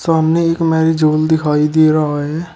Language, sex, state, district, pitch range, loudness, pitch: Hindi, male, Uttar Pradesh, Shamli, 155-165 Hz, -14 LUFS, 160 Hz